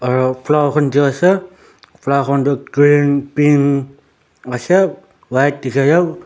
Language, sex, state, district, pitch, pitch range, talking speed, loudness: Nagamese, male, Nagaland, Dimapur, 140 Hz, 140-150 Hz, 85 wpm, -15 LUFS